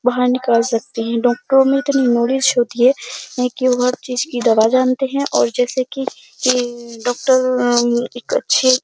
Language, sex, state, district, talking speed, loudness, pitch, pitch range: Hindi, female, Uttar Pradesh, Jyotiba Phule Nagar, 175 wpm, -17 LUFS, 250 Hz, 240-260 Hz